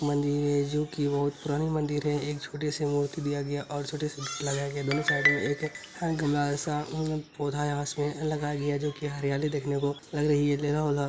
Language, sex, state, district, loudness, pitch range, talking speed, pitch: Maithili, male, Bihar, Araria, -29 LUFS, 145-150 Hz, 220 wpm, 145 Hz